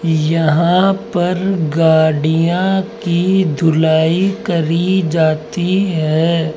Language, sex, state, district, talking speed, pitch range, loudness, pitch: Hindi, male, Rajasthan, Jaipur, 75 wpm, 160-185 Hz, -14 LUFS, 170 Hz